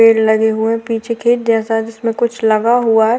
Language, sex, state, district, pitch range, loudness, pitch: Hindi, female, Uttarakhand, Tehri Garhwal, 220-230 Hz, -14 LUFS, 225 Hz